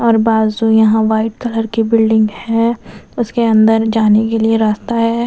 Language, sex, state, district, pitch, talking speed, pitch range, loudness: Hindi, female, Bihar, West Champaran, 225 Hz, 170 wpm, 220-230 Hz, -13 LUFS